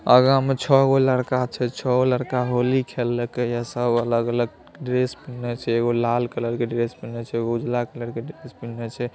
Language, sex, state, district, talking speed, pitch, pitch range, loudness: Maithili, male, Bihar, Saharsa, 205 wpm, 120 Hz, 120-125 Hz, -22 LUFS